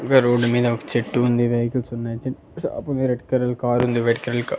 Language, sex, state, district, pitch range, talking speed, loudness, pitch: Telugu, male, Andhra Pradesh, Annamaya, 120-125 Hz, 250 wpm, -21 LUFS, 120 Hz